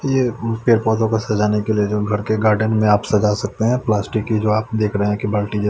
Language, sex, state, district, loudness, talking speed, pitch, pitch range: Hindi, male, Chandigarh, Chandigarh, -18 LUFS, 240 wpm, 110 Hz, 105-110 Hz